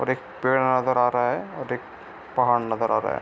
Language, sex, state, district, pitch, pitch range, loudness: Hindi, male, Bihar, East Champaran, 125 Hz, 120-130 Hz, -24 LUFS